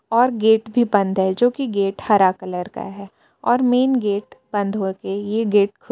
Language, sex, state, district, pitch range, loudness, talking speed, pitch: Hindi, female, Jharkhand, Palamu, 195-235 Hz, -19 LUFS, 205 wpm, 205 Hz